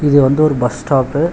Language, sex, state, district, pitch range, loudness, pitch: Tamil, male, Tamil Nadu, Chennai, 130-150 Hz, -14 LUFS, 140 Hz